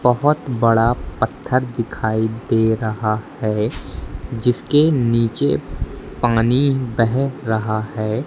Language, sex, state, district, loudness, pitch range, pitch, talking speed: Hindi, male, Madhya Pradesh, Umaria, -19 LUFS, 110-125 Hz, 115 Hz, 95 wpm